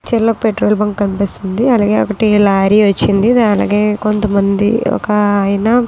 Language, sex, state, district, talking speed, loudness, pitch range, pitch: Telugu, female, Andhra Pradesh, Visakhapatnam, 110 wpm, -13 LUFS, 200-220 Hz, 210 Hz